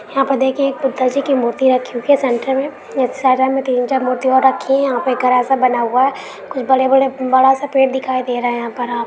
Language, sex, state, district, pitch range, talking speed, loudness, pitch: Hindi, male, Uttar Pradesh, Ghazipur, 250-270 Hz, 290 wpm, -15 LUFS, 260 Hz